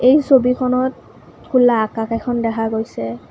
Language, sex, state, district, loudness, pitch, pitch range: Assamese, female, Assam, Kamrup Metropolitan, -17 LUFS, 235 Hz, 225-255 Hz